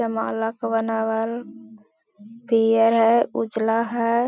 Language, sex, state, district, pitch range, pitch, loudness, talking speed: Hindi, female, Bihar, Gaya, 225-230 Hz, 225 Hz, -21 LUFS, 55 wpm